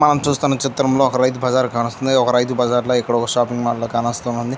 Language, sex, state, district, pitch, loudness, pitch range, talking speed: Telugu, male, Andhra Pradesh, Chittoor, 125 Hz, -18 LUFS, 120-130 Hz, 260 wpm